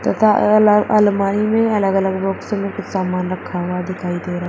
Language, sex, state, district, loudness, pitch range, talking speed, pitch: Hindi, female, Uttar Pradesh, Shamli, -17 LUFS, 185-210 Hz, 215 wpm, 195 Hz